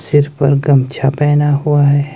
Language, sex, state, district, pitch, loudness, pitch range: Hindi, male, Himachal Pradesh, Shimla, 145 Hz, -13 LUFS, 140-145 Hz